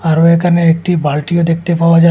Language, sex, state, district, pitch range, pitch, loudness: Bengali, male, Assam, Hailakandi, 165-170 Hz, 170 Hz, -12 LUFS